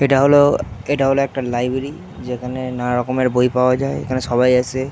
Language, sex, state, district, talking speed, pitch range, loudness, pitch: Bengali, male, West Bengal, Jhargram, 195 wpm, 125-135 Hz, -18 LUFS, 130 Hz